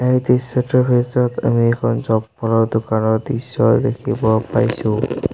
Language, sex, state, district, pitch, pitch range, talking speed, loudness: Assamese, male, Assam, Sonitpur, 120 Hz, 110-125 Hz, 110 wpm, -17 LUFS